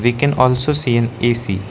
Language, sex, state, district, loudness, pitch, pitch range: English, male, Arunachal Pradesh, Lower Dibang Valley, -16 LUFS, 120 Hz, 115-130 Hz